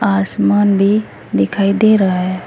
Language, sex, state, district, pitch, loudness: Hindi, female, Uttar Pradesh, Saharanpur, 190 Hz, -14 LUFS